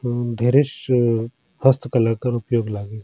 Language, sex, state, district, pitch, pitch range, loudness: Surgujia, male, Chhattisgarh, Sarguja, 120 Hz, 115-125 Hz, -20 LUFS